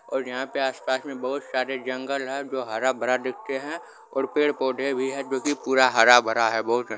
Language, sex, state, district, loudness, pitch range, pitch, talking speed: Hindi, male, Bihar, Supaul, -24 LUFS, 125-135 Hz, 130 Hz, 205 wpm